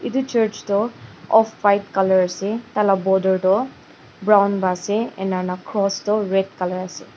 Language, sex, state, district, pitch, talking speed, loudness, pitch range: Nagamese, female, Nagaland, Dimapur, 200 Hz, 175 wpm, -20 LUFS, 190-215 Hz